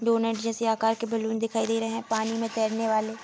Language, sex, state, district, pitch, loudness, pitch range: Hindi, female, Bihar, Begusarai, 225 Hz, -27 LUFS, 225-230 Hz